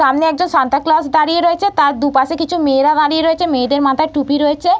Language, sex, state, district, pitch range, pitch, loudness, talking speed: Bengali, female, West Bengal, Purulia, 285-330 Hz, 310 Hz, -14 LUFS, 215 wpm